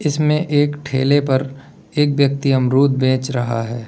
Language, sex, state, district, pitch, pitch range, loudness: Hindi, male, Uttar Pradesh, Lalitpur, 135 Hz, 130-145 Hz, -17 LUFS